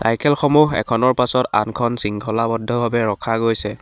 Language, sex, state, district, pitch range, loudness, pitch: Assamese, male, Assam, Hailakandi, 110-125 Hz, -18 LUFS, 115 Hz